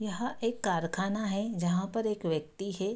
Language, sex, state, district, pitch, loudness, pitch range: Hindi, female, Bihar, Darbhanga, 200 Hz, -32 LUFS, 185-215 Hz